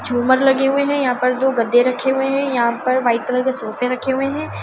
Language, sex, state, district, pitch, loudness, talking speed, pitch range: Hindi, female, Delhi, New Delhi, 255 Hz, -17 LUFS, 220 wpm, 250-270 Hz